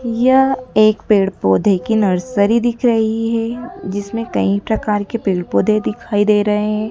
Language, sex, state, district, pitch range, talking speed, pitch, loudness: Hindi, female, Madhya Pradesh, Dhar, 205-230 Hz, 165 wpm, 215 Hz, -16 LUFS